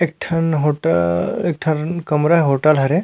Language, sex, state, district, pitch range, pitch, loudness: Chhattisgarhi, male, Chhattisgarh, Rajnandgaon, 150-165 Hz, 155 Hz, -17 LUFS